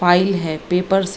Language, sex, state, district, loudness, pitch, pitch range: Hindi, female, Bihar, Gaya, -18 LUFS, 180 Hz, 175-195 Hz